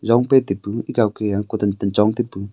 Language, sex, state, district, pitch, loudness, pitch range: Wancho, male, Arunachal Pradesh, Longding, 105 Hz, -19 LUFS, 100-115 Hz